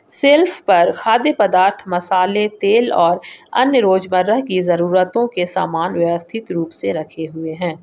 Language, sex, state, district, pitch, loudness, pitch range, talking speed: Hindi, female, Jharkhand, Garhwa, 185 Hz, -16 LUFS, 170-215 Hz, 155 wpm